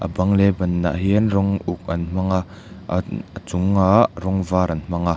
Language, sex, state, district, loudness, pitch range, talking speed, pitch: Mizo, male, Mizoram, Aizawl, -20 LUFS, 90-100 Hz, 210 wpm, 95 Hz